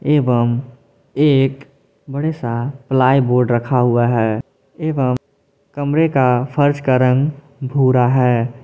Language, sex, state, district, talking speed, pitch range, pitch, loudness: Hindi, male, Jharkhand, Palamu, 120 wpm, 125-140 Hz, 135 Hz, -16 LUFS